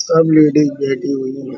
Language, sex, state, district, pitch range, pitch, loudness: Hindi, male, Uttar Pradesh, Muzaffarnagar, 135-155 Hz, 140 Hz, -14 LUFS